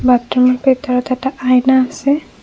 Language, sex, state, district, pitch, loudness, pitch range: Assamese, female, Assam, Kamrup Metropolitan, 255 Hz, -14 LUFS, 250-265 Hz